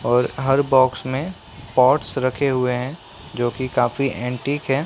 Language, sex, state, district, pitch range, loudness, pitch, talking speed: Hindi, male, Uttar Pradesh, Varanasi, 125-135 Hz, -20 LUFS, 130 Hz, 160 wpm